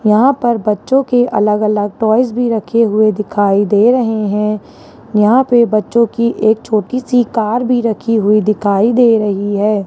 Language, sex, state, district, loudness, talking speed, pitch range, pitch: Hindi, male, Rajasthan, Jaipur, -13 LUFS, 175 wpm, 210-235 Hz, 220 Hz